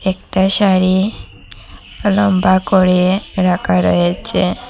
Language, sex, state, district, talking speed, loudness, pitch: Bengali, female, Assam, Hailakandi, 75 wpm, -14 LUFS, 185 Hz